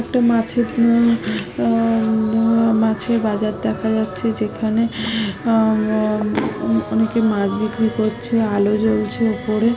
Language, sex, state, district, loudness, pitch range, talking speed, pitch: Bengali, female, West Bengal, Malda, -18 LUFS, 215-230 Hz, 110 wpm, 220 Hz